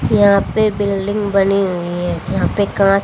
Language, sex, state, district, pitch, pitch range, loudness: Hindi, female, Haryana, Rohtak, 200 Hz, 195-205 Hz, -16 LUFS